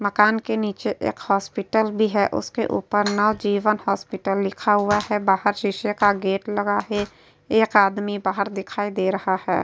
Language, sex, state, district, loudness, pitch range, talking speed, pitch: Hindi, female, Uttar Pradesh, Etah, -22 LUFS, 195-210 Hz, 170 wpm, 205 Hz